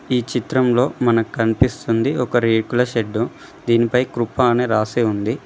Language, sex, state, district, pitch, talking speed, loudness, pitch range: Telugu, male, Telangana, Mahabubabad, 120 Hz, 130 wpm, -18 LUFS, 115-125 Hz